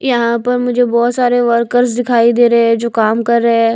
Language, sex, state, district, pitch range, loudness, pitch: Hindi, female, Maharashtra, Mumbai Suburban, 235-245 Hz, -12 LUFS, 235 Hz